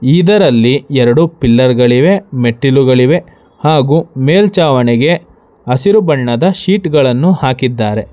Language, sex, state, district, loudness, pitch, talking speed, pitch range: Kannada, male, Karnataka, Bangalore, -10 LUFS, 135 Hz, 105 wpm, 125-170 Hz